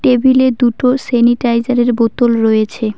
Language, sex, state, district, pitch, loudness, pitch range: Bengali, female, West Bengal, Cooch Behar, 240 Hz, -12 LUFS, 230-250 Hz